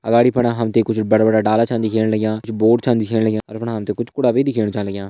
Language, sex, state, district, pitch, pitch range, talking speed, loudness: Garhwali, male, Uttarakhand, Tehri Garhwal, 110 Hz, 110-115 Hz, 260 wpm, -18 LUFS